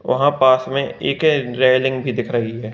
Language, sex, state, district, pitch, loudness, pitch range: Hindi, male, Bihar, Gopalganj, 130 Hz, -17 LUFS, 125-140 Hz